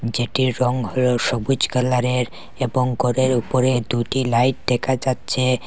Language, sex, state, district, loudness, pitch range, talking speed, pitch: Bengali, male, Assam, Hailakandi, -20 LUFS, 120-130 Hz, 125 wpm, 125 Hz